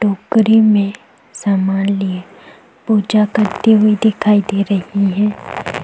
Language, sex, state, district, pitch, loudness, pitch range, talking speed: Hindi, female, Chhattisgarh, Kabirdham, 205 Hz, -14 LUFS, 195-215 Hz, 115 wpm